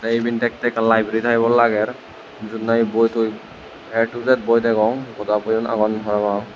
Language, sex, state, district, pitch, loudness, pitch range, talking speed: Chakma, male, Tripura, West Tripura, 115 Hz, -19 LUFS, 110-115 Hz, 200 wpm